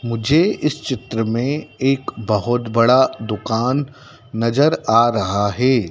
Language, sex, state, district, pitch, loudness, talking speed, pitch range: Hindi, male, Madhya Pradesh, Dhar, 120 Hz, -18 LUFS, 120 wpm, 115-135 Hz